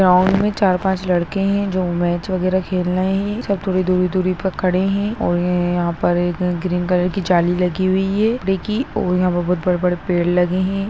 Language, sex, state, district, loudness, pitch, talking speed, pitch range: Hindi, male, Bihar, Gaya, -18 LUFS, 185 Hz, 205 wpm, 180-195 Hz